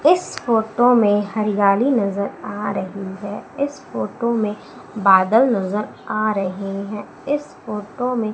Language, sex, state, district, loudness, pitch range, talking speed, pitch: Hindi, female, Madhya Pradesh, Umaria, -20 LUFS, 200-240 Hz, 145 wpm, 210 Hz